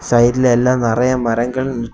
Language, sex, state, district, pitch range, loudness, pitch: Tamil, male, Tamil Nadu, Kanyakumari, 120-125 Hz, -15 LUFS, 120 Hz